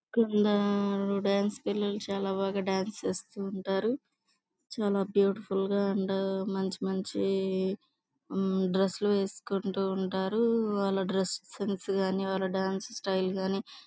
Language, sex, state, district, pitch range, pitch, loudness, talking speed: Telugu, female, Andhra Pradesh, Guntur, 190-200 Hz, 195 Hz, -30 LUFS, 105 wpm